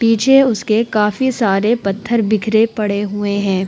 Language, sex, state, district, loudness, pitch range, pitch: Hindi, female, Uttar Pradesh, Muzaffarnagar, -15 LUFS, 205-230 Hz, 215 Hz